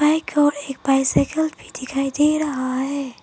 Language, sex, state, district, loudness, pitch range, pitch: Hindi, female, Arunachal Pradesh, Papum Pare, -20 LUFS, 270-300 Hz, 280 Hz